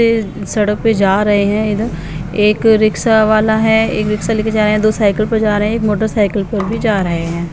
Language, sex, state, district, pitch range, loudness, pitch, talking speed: Hindi, female, Bihar, Patna, 205-220 Hz, -14 LUFS, 210 Hz, 255 wpm